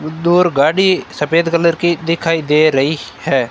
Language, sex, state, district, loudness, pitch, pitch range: Hindi, male, Rajasthan, Bikaner, -14 LUFS, 165 Hz, 150-170 Hz